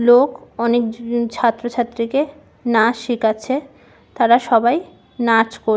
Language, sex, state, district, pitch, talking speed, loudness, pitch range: Bengali, female, West Bengal, Malda, 235 Hz, 105 wpm, -18 LUFS, 230-250 Hz